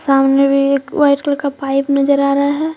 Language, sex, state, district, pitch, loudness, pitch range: Hindi, female, Jharkhand, Deoghar, 280 Hz, -14 LUFS, 275-285 Hz